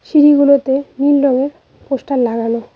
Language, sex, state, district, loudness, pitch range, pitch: Bengali, female, West Bengal, Cooch Behar, -14 LUFS, 255-285 Hz, 275 Hz